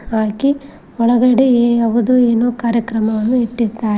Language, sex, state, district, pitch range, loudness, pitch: Kannada, female, Karnataka, Koppal, 225-245 Hz, -15 LUFS, 235 Hz